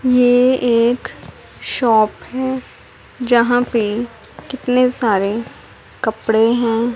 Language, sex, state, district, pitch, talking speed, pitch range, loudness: Hindi, female, Punjab, Pathankot, 240 Hz, 85 wpm, 225-250 Hz, -16 LUFS